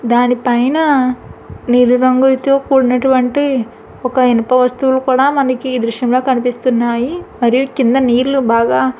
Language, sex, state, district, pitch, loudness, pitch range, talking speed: Telugu, female, Andhra Pradesh, Anantapur, 255 Hz, -13 LUFS, 245-265 Hz, 120 wpm